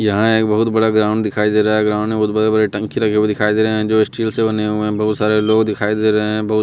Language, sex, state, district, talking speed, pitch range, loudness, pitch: Hindi, male, Bihar, West Champaran, 315 wpm, 105-110 Hz, -16 LUFS, 110 Hz